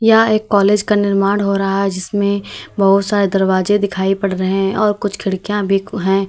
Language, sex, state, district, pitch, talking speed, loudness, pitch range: Hindi, female, Uttar Pradesh, Lalitpur, 200 Hz, 200 wpm, -15 LUFS, 195-205 Hz